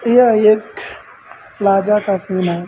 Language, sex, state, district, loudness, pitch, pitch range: Hindi, male, Uttar Pradesh, Lucknow, -14 LUFS, 210 Hz, 190-215 Hz